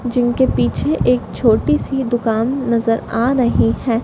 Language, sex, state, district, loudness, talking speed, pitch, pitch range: Hindi, female, Madhya Pradesh, Dhar, -16 LUFS, 150 wpm, 240 Hz, 225-250 Hz